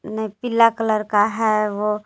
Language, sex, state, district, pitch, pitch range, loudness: Hindi, female, Jharkhand, Garhwa, 215 Hz, 210-225 Hz, -19 LUFS